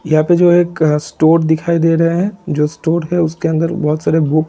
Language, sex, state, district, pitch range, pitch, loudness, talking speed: Hindi, male, Jharkhand, Sahebganj, 155-170 Hz, 165 Hz, -14 LUFS, 255 wpm